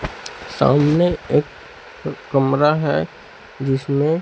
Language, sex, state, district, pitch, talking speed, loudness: Hindi, male, Chhattisgarh, Raipur, 155 Hz, 70 wpm, -18 LUFS